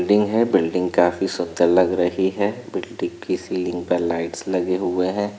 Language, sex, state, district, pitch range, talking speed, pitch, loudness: Hindi, male, Uttar Pradesh, Budaun, 90-95 Hz, 180 wpm, 90 Hz, -21 LUFS